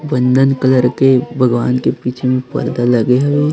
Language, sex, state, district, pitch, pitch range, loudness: Hindi, female, Chhattisgarh, Raipur, 130 Hz, 125-135 Hz, -14 LUFS